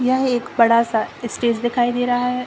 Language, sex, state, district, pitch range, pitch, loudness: Hindi, female, Chhattisgarh, Bilaspur, 235-250 Hz, 245 Hz, -19 LUFS